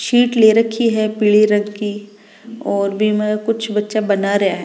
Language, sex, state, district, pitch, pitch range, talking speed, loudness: Rajasthani, female, Rajasthan, Nagaur, 210 Hz, 205-225 Hz, 180 wpm, -16 LUFS